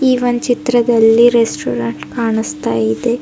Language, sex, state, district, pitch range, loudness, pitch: Kannada, female, Karnataka, Bidar, 220-245 Hz, -14 LUFS, 235 Hz